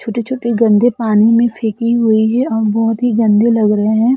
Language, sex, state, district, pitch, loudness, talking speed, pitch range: Hindi, female, Uttar Pradesh, Etah, 225 Hz, -13 LUFS, 200 wpm, 220-235 Hz